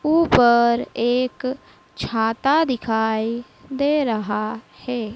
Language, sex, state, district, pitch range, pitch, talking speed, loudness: Hindi, female, Madhya Pradesh, Dhar, 225-270 Hz, 240 Hz, 80 wpm, -20 LUFS